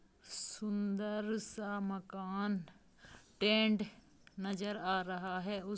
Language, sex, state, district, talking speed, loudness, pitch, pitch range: Hindi, female, Jharkhand, Jamtara, 85 wpm, -38 LUFS, 205 Hz, 190-210 Hz